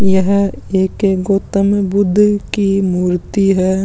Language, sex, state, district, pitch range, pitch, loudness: Hindi, male, Chhattisgarh, Sukma, 190-200 Hz, 195 Hz, -14 LUFS